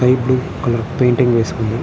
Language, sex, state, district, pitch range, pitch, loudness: Telugu, male, Andhra Pradesh, Srikakulam, 115-125 Hz, 125 Hz, -16 LUFS